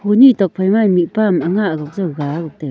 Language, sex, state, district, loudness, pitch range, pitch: Wancho, female, Arunachal Pradesh, Longding, -15 LUFS, 165-205 Hz, 185 Hz